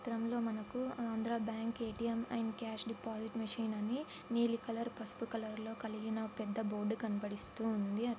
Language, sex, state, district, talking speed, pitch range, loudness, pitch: Telugu, female, Andhra Pradesh, Anantapur, 170 wpm, 220-230 Hz, -40 LUFS, 225 Hz